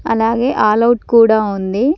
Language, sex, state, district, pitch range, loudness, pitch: Telugu, female, Telangana, Mahabubabad, 215-240 Hz, -13 LUFS, 225 Hz